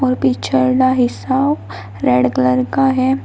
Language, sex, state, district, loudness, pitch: Hindi, female, Uttar Pradesh, Shamli, -15 LUFS, 255 Hz